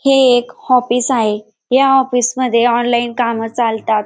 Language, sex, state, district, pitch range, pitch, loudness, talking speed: Marathi, female, Maharashtra, Dhule, 230-255 Hz, 240 Hz, -14 LUFS, 150 wpm